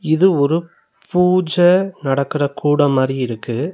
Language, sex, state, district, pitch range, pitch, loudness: Tamil, male, Tamil Nadu, Nilgiris, 140-180 Hz, 150 Hz, -16 LUFS